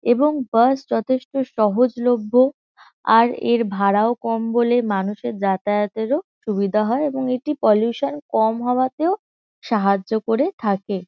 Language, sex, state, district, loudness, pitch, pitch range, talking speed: Bengali, female, West Bengal, Kolkata, -20 LUFS, 235 Hz, 215-260 Hz, 115 wpm